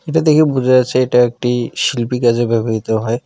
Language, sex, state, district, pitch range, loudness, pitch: Bengali, male, West Bengal, Alipurduar, 120-130 Hz, -15 LUFS, 125 Hz